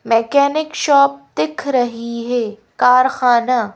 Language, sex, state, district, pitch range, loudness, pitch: Hindi, female, Madhya Pradesh, Bhopal, 225-270 Hz, -16 LUFS, 245 Hz